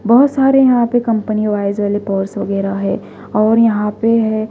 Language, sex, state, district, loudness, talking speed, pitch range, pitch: Hindi, female, Delhi, New Delhi, -15 LUFS, 185 wpm, 205-230 Hz, 215 Hz